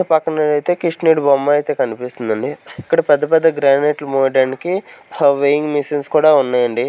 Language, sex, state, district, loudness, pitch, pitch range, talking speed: Telugu, male, Andhra Pradesh, Sri Satya Sai, -16 LUFS, 145 Hz, 135-160 Hz, 130 wpm